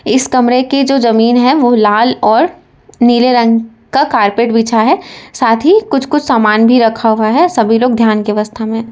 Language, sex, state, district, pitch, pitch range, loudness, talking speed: Hindi, female, Uttar Pradesh, Lalitpur, 235 Hz, 225-260 Hz, -11 LUFS, 200 wpm